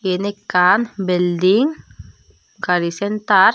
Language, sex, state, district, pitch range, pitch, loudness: Chakma, female, Tripura, Dhalai, 180-205 Hz, 190 Hz, -17 LUFS